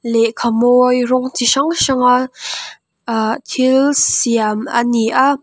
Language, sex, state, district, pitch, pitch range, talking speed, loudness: Mizo, female, Mizoram, Aizawl, 250 Hz, 235-260 Hz, 120 wpm, -14 LUFS